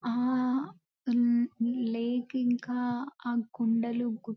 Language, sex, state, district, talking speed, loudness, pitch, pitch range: Telugu, female, Telangana, Nalgonda, 95 wpm, -30 LUFS, 240 Hz, 235-245 Hz